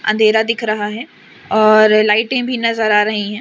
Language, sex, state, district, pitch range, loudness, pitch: Hindi, female, Madhya Pradesh, Umaria, 215-230 Hz, -14 LUFS, 215 Hz